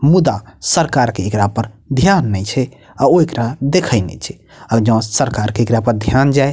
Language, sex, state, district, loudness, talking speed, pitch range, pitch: Maithili, male, Bihar, Purnia, -15 LUFS, 195 wpm, 110-140 Hz, 120 Hz